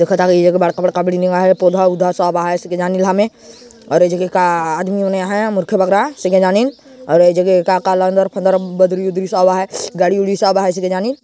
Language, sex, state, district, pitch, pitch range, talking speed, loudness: Hindi, male, Chhattisgarh, Jashpur, 185 Hz, 180-195 Hz, 190 wpm, -14 LUFS